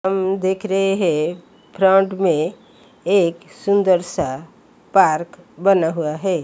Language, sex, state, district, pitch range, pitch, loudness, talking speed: Hindi, female, Odisha, Malkangiri, 170-195 Hz, 190 Hz, -18 LUFS, 120 wpm